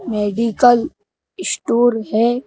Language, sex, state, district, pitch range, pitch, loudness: Hindi, male, Madhya Pradesh, Bhopal, 225-245 Hz, 230 Hz, -17 LUFS